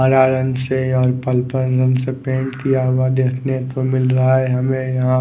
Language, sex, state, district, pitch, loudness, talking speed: Hindi, male, Odisha, Khordha, 130 Hz, -17 LUFS, 195 wpm